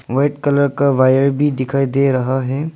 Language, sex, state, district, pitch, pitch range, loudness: Hindi, male, Arunachal Pradesh, Lower Dibang Valley, 140 Hz, 130-145 Hz, -16 LUFS